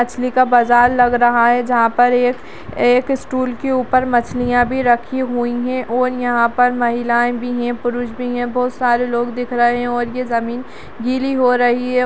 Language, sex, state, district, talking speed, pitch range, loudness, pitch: Hindi, female, Uttarakhand, Tehri Garhwal, 195 wpm, 240-250 Hz, -16 LUFS, 245 Hz